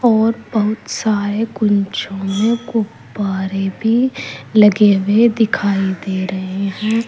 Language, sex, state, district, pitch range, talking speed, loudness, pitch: Hindi, female, Uttar Pradesh, Saharanpur, 195-225 Hz, 110 wpm, -17 LUFS, 210 Hz